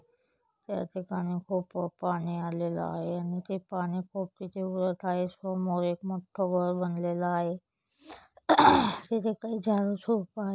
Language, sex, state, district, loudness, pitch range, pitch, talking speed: Marathi, female, Maharashtra, Chandrapur, -30 LUFS, 175-195 Hz, 185 Hz, 120 wpm